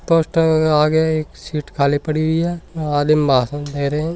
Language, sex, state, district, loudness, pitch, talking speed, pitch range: Hindi, male, Rajasthan, Nagaur, -18 LUFS, 155 Hz, 200 wpm, 145-160 Hz